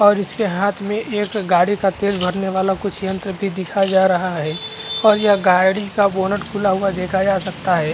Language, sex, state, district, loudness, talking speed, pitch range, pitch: Hindi, male, Chhattisgarh, Balrampur, -18 LUFS, 210 wpm, 185-205 Hz, 195 Hz